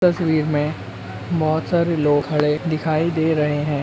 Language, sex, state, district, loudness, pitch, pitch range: Hindi, male, Uttarakhand, Uttarkashi, -20 LUFS, 155 Hz, 150-160 Hz